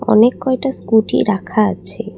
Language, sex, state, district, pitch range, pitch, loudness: Bengali, female, Assam, Kamrup Metropolitan, 210-255 Hz, 220 Hz, -16 LUFS